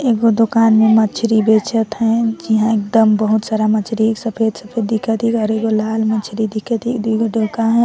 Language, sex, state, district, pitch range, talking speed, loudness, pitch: Sadri, female, Chhattisgarh, Jashpur, 220-225 Hz, 190 wpm, -16 LUFS, 220 Hz